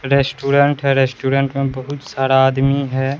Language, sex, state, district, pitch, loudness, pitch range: Hindi, male, Bihar, Katihar, 135 Hz, -16 LUFS, 135-140 Hz